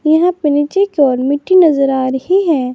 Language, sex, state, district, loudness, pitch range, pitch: Hindi, female, Jharkhand, Garhwa, -13 LUFS, 270-355 Hz, 295 Hz